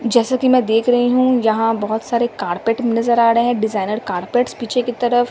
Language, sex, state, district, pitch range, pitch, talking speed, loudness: Hindi, female, Delhi, New Delhi, 220-245 Hz, 235 Hz, 215 wpm, -17 LUFS